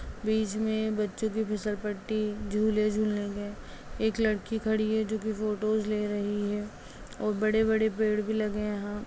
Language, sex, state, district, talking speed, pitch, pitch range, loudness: Hindi, female, Bihar, Begusarai, 170 wpm, 215 Hz, 210-220 Hz, -30 LUFS